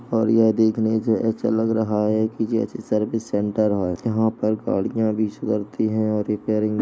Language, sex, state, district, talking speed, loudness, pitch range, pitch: Hindi, male, Uttar Pradesh, Jalaun, 175 wpm, -22 LUFS, 105-110 Hz, 110 Hz